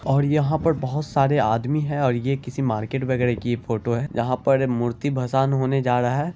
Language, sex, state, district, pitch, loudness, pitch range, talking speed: Hindi, male, Bihar, Araria, 130 Hz, -22 LUFS, 120-140 Hz, 225 wpm